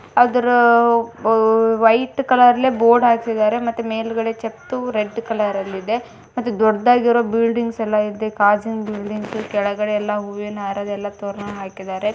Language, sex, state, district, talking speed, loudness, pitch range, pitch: Kannada, female, Karnataka, Bijapur, 105 wpm, -18 LUFS, 210-235 Hz, 225 Hz